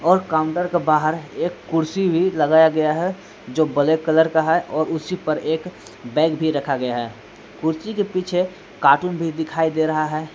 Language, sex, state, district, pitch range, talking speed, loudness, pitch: Hindi, male, Jharkhand, Palamu, 155-175 Hz, 190 wpm, -20 LUFS, 160 Hz